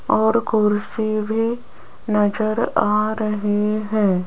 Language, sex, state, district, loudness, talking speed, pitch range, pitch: Hindi, female, Rajasthan, Jaipur, -20 LUFS, 100 wpm, 210-220 Hz, 215 Hz